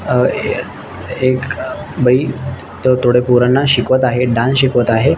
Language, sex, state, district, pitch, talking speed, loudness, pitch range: Marathi, male, Maharashtra, Nagpur, 125 Hz, 160 wpm, -14 LUFS, 120-130 Hz